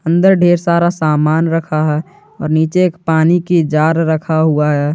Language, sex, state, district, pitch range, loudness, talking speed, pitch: Hindi, male, Jharkhand, Garhwa, 155-170 Hz, -13 LUFS, 170 wpm, 160 Hz